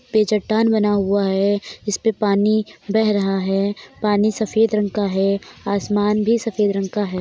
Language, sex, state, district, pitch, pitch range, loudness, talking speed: Hindi, female, Uttar Pradesh, Etah, 210 Hz, 200-215 Hz, -19 LUFS, 185 wpm